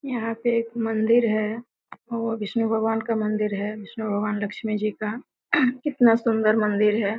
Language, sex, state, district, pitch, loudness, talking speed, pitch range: Hindi, female, Bihar, Gopalganj, 225 Hz, -24 LUFS, 165 wpm, 215-230 Hz